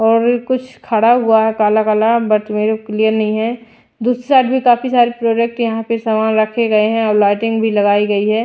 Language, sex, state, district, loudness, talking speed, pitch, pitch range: Hindi, female, Bihar, Patna, -14 LUFS, 220 wpm, 225 Hz, 215-235 Hz